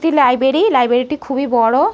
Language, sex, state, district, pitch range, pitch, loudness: Bengali, female, West Bengal, North 24 Parganas, 250-300 Hz, 270 Hz, -14 LUFS